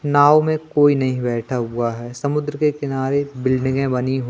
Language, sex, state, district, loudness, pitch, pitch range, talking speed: Hindi, male, Madhya Pradesh, Katni, -19 LUFS, 135 Hz, 125-145 Hz, 165 wpm